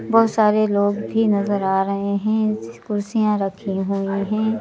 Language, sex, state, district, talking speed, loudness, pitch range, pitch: Hindi, female, Madhya Pradesh, Bhopal, 155 wpm, -20 LUFS, 195-215 Hz, 205 Hz